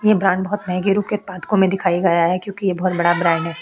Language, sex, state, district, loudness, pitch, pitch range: Hindi, female, Goa, North and South Goa, -18 LUFS, 185 Hz, 175-200 Hz